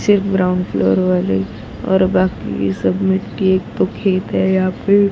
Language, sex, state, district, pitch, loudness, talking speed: Hindi, female, Maharashtra, Mumbai Suburban, 185 Hz, -16 LUFS, 165 wpm